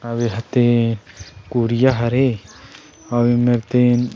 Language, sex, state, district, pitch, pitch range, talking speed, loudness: Chhattisgarhi, male, Chhattisgarh, Sarguja, 120 Hz, 115-120 Hz, 130 wpm, -18 LUFS